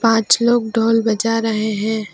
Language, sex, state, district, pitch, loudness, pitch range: Hindi, female, West Bengal, Alipurduar, 225 Hz, -17 LUFS, 220-225 Hz